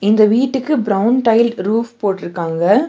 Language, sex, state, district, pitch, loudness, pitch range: Tamil, female, Tamil Nadu, Nilgiris, 225 Hz, -15 LUFS, 200-245 Hz